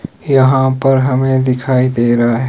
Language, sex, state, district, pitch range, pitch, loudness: Hindi, male, Himachal Pradesh, Shimla, 125-135 Hz, 130 Hz, -13 LUFS